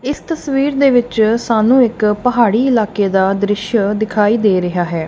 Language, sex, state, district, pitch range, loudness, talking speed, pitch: Punjabi, female, Punjab, Kapurthala, 205-250 Hz, -14 LUFS, 165 wpm, 220 Hz